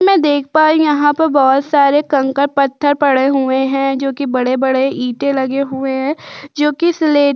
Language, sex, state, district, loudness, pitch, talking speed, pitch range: Hindi, female, Uttar Pradesh, Budaun, -14 LUFS, 280 Hz, 205 wpm, 265-295 Hz